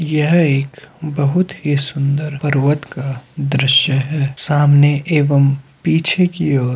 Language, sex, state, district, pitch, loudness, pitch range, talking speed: Hindi, male, Uttar Pradesh, Hamirpur, 145 Hz, -16 LUFS, 140-150 Hz, 135 wpm